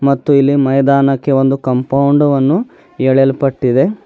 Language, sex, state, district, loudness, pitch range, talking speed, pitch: Kannada, male, Karnataka, Bidar, -12 LUFS, 135-140 Hz, 120 wpm, 140 Hz